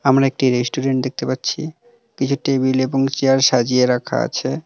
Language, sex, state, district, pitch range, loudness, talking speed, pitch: Bengali, male, West Bengal, Cooch Behar, 130-140 Hz, -18 LUFS, 155 wpm, 135 Hz